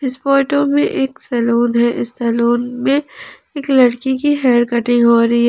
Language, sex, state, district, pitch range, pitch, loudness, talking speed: Hindi, female, Jharkhand, Palamu, 235-275 Hz, 245 Hz, -15 LUFS, 175 wpm